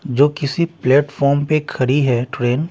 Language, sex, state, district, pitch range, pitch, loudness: Hindi, male, Bihar, Patna, 130-150 Hz, 140 Hz, -17 LUFS